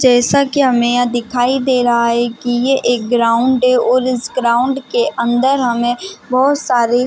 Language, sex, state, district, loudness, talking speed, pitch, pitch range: Hindi, female, Chhattisgarh, Bilaspur, -14 LUFS, 180 wpm, 245 Hz, 240-260 Hz